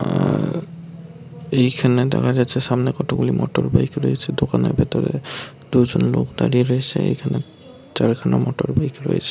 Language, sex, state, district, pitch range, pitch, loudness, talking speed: Bengali, male, West Bengal, Paschim Medinipur, 125-160 Hz, 135 Hz, -19 LUFS, 120 wpm